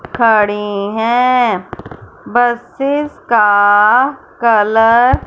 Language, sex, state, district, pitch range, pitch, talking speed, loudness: Hindi, female, Punjab, Fazilka, 210-245 Hz, 230 Hz, 70 wpm, -12 LUFS